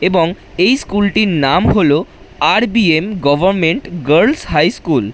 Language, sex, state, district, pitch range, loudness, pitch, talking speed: Bengali, male, West Bengal, Jhargram, 160-205 Hz, -13 LUFS, 180 Hz, 140 wpm